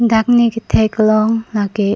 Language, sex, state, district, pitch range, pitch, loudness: Karbi, female, Assam, Karbi Anglong, 215-225 Hz, 220 Hz, -14 LUFS